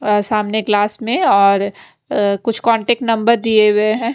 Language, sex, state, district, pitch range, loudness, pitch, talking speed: Hindi, female, Haryana, Rohtak, 205-230 Hz, -15 LUFS, 215 Hz, 175 wpm